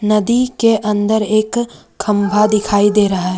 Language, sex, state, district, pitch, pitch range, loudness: Hindi, female, Jharkhand, Ranchi, 210 Hz, 205-220 Hz, -15 LUFS